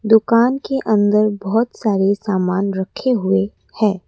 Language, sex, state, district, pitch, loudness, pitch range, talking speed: Hindi, female, Assam, Kamrup Metropolitan, 210 Hz, -17 LUFS, 190-225 Hz, 130 wpm